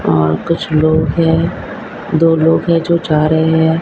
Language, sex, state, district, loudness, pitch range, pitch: Hindi, female, Maharashtra, Mumbai Suburban, -13 LUFS, 155-165 Hz, 160 Hz